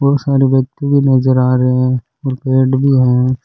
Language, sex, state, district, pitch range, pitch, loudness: Rajasthani, male, Rajasthan, Churu, 125-135 Hz, 130 Hz, -13 LUFS